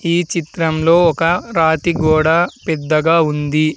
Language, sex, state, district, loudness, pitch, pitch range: Telugu, male, Andhra Pradesh, Sri Satya Sai, -15 LUFS, 160 Hz, 155-170 Hz